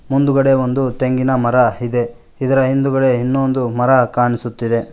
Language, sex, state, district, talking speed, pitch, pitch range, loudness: Kannada, male, Karnataka, Koppal, 120 wpm, 130 Hz, 120-135 Hz, -16 LUFS